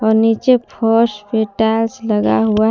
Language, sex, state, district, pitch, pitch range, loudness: Hindi, female, Jharkhand, Palamu, 220 Hz, 215-225 Hz, -15 LUFS